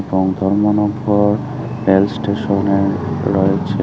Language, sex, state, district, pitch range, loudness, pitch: Bengali, male, Tripura, Unakoti, 95-105 Hz, -16 LUFS, 100 Hz